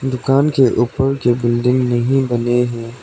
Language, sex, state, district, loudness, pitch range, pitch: Hindi, male, Arunachal Pradesh, Lower Dibang Valley, -16 LUFS, 120-135 Hz, 125 Hz